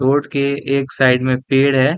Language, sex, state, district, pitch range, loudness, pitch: Hindi, male, Bihar, Saran, 130-140 Hz, -16 LUFS, 135 Hz